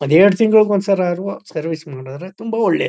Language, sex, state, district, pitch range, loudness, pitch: Kannada, male, Karnataka, Chamarajanagar, 160-205 Hz, -16 LUFS, 190 Hz